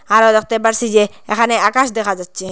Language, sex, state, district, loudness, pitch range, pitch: Bengali, female, Assam, Hailakandi, -14 LUFS, 205-225 Hz, 220 Hz